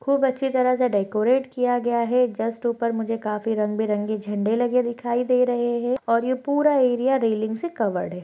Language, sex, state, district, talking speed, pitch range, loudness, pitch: Hindi, female, Chhattisgarh, Balrampur, 205 wpm, 220-255 Hz, -23 LUFS, 240 Hz